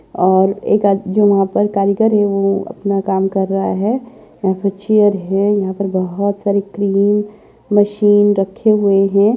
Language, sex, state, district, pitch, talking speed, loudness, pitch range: Hindi, male, Maharashtra, Washim, 200 Hz, 175 wpm, -15 LUFS, 195-205 Hz